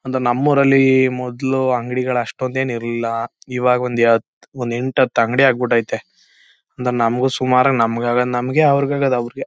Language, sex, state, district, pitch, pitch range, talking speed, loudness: Kannada, male, Karnataka, Chamarajanagar, 125 Hz, 120-130 Hz, 125 wpm, -17 LUFS